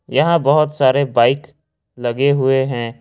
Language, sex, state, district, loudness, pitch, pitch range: Hindi, male, Jharkhand, Ranchi, -16 LUFS, 135 Hz, 125-145 Hz